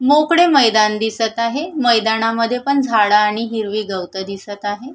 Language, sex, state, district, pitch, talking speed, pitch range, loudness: Marathi, female, Maharashtra, Sindhudurg, 225 Hz, 145 wpm, 210-265 Hz, -16 LUFS